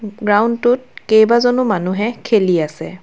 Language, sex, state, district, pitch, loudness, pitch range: Assamese, female, Assam, Kamrup Metropolitan, 220 Hz, -15 LUFS, 205-240 Hz